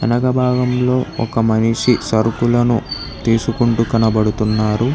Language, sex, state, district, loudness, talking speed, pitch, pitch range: Telugu, male, Telangana, Hyderabad, -16 LUFS, 85 wpm, 115 Hz, 110-125 Hz